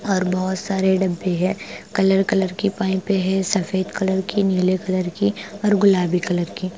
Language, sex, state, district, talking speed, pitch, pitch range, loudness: Hindi, female, Punjab, Pathankot, 175 wpm, 190 Hz, 185-195 Hz, -20 LUFS